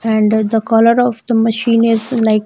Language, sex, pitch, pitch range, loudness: English, female, 225 Hz, 220-230 Hz, -13 LUFS